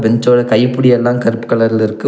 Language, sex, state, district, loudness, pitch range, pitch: Tamil, male, Tamil Nadu, Nilgiris, -12 LUFS, 110-125 Hz, 115 Hz